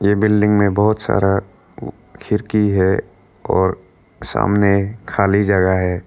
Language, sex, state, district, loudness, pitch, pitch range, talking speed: Hindi, male, Arunachal Pradesh, Lower Dibang Valley, -17 LUFS, 100 Hz, 95-105 Hz, 110 wpm